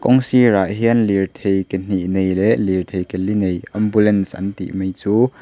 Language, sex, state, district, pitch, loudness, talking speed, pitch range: Mizo, male, Mizoram, Aizawl, 100 Hz, -18 LUFS, 190 wpm, 95-105 Hz